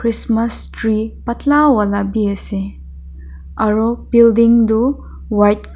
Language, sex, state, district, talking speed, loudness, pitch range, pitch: Nagamese, female, Nagaland, Dimapur, 115 wpm, -15 LUFS, 200-235 Hz, 220 Hz